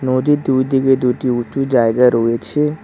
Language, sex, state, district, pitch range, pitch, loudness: Bengali, male, West Bengal, Cooch Behar, 120-135 Hz, 130 Hz, -15 LUFS